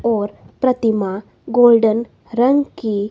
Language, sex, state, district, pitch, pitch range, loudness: Hindi, female, Himachal Pradesh, Shimla, 230 Hz, 215-250 Hz, -17 LUFS